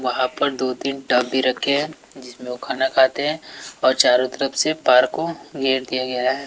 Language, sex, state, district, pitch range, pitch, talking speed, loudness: Hindi, male, Bihar, West Champaran, 130-140 Hz, 130 Hz, 215 wpm, -20 LUFS